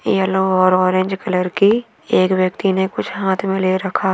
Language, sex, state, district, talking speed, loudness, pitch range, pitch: Hindi, female, Chhattisgarh, Bilaspur, 190 wpm, -17 LUFS, 185-195 Hz, 190 Hz